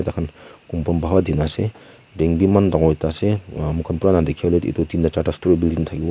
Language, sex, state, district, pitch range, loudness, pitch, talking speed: Nagamese, male, Nagaland, Kohima, 80-90 Hz, -19 LUFS, 85 Hz, 185 wpm